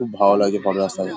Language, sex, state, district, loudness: Bengali, male, West Bengal, Paschim Medinipur, -19 LUFS